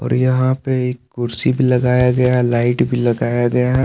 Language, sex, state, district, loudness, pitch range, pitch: Hindi, male, Jharkhand, Palamu, -16 LUFS, 120-130 Hz, 125 Hz